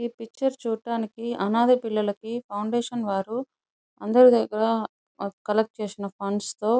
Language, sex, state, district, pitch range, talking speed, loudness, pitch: Telugu, female, Andhra Pradesh, Chittoor, 210-240 Hz, 125 wpm, -25 LUFS, 225 Hz